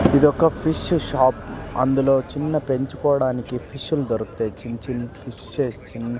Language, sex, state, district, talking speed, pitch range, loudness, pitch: Telugu, male, Andhra Pradesh, Sri Satya Sai, 125 wpm, 115-145 Hz, -22 LUFS, 130 Hz